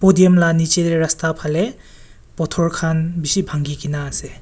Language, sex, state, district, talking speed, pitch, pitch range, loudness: Nagamese, male, Nagaland, Kohima, 150 wpm, 165 Hz, 155-175 Hz, -18 LUFS